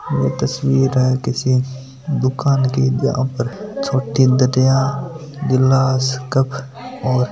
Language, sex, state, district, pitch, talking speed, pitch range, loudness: Hindi, male, Rajasthan, Nagaur, 130 Hz, 115 wpm, 130-140 Hz, -17 LUFS